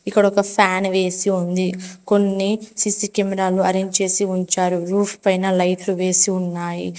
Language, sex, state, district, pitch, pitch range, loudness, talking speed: Telugu, female, Telangana, Mahabubabad, 190 Hz, 185-200 Hz, -19 LUFS, 130 wpm